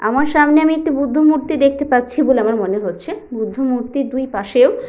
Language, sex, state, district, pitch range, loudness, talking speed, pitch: Bengali, female, West Bengal, Jhargram, 245-310 Hz, -16 LUFS, 185 wpm, 275 Hz